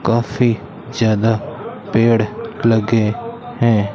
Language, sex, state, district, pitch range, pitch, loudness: Hindi, male, Rajasthan, Bikaner, 110-120 Hz, 115 Hz, -17 LUFS